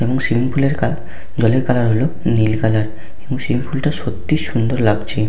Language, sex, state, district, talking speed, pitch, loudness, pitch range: Bengali, male, West Bengal, Paschim Medinipur, 180 wpm, 120 Hz, -18 LUFS, 110-135 Hz